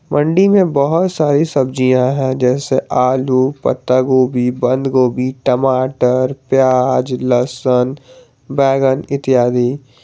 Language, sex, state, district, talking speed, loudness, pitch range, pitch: Hindi, male, Jharkhand, Garhwa, 100 wpm, -14 LUFS, 125-135 Hz, 130 Hz